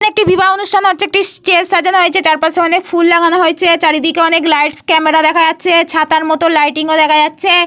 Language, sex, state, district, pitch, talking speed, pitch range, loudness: Bengali, female, Jharkhand, Jamtara, 340 Hz, 205 wpm, 315-365 Hz, -10 LUFS